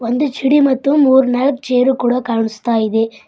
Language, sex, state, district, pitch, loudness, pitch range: Kannada, male, Karnataka, Bidar, 250 Hz, -14 LUFS, 230-270 Hz